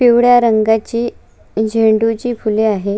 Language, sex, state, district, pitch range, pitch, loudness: Marathi, female, Maharashtra, Sindhudurg, 220-235 Hz, 225 Hz, -14 LUFS